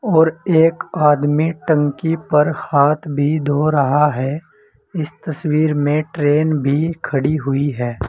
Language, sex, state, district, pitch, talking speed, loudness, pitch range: Hindi, male, Uttar Pradesh, Saharanpur, 150 Hz, 135 wpm, -17 LUFS, 145-160 Hz